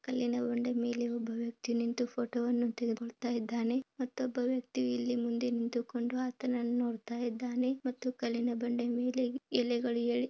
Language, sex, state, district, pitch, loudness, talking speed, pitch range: Kannada, female, Karnataka, Bellary, 240 Hz, -34 LUFS, 95 wpm, 235-250 Hz